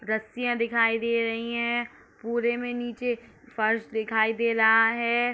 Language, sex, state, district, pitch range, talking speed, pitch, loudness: Hindi, female, Uttar Pradesh, Hamirpur, 225-240 Hz, 145 wpm, 235 Hz, -25 LUFS